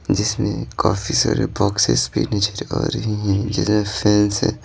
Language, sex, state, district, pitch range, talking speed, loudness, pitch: Hindi, male, Bihar, Patna, 105-110 Hz, 155 wpm, -19 LUFS, 105 Hz